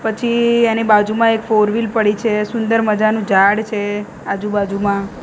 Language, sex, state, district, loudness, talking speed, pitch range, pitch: Gujarati, female, Gujarat, Gandhinagar, -16 LUFS, 160 wpm, 205-225 Hz, 215 Hz